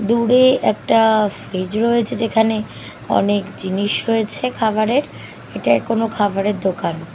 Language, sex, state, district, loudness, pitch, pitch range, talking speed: Bengali, female, Bihar, Katihar, -18 LUFS, 220 Hz, 200-230 Hz, 120 wpm